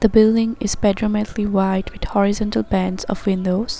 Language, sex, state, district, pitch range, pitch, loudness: English, female, Assam, Sonitpur, 190-215 Hz, 205 Hz, -19 LUFS